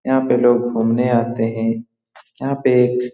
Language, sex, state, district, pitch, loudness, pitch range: Hindi, male, Bihar, Saran, 120 Hz, -18 LUFS, 115-125 Hz